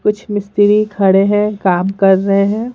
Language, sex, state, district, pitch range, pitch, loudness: Hindi, male, Bihar, Patna, 195-210 Hz, 205 Hz, -13 LUFS